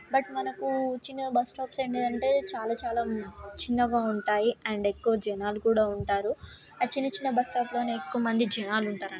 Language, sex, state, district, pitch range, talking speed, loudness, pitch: Telugu, female, Telangana, Karimnagar, 210-255 Hz, 165 wpm, -29 LUFS, 235 Hz